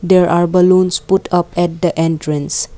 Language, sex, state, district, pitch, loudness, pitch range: English, female, Assam, Kamrup Metropolitan, 175 Hz, -14 LUFS, 165-180 Hz